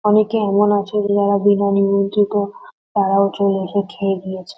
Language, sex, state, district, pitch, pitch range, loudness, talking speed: Bengali, female, West Bengal, North 24 Parganas, 200 Hz, 195-205 Hz, -17 LUFS, 145 wpm